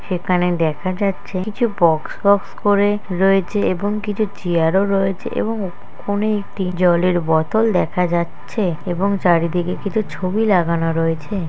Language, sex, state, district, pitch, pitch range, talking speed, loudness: Bengali, female, West Bengal, Kolkata, 185 Hz, 175-205 Hz, 135 wpm, -19 LUFS